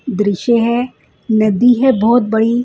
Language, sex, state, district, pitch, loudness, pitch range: Hindi, female, Punjab, Kapurthala, 235 Hz, -13 LUFS, 220-245 Hz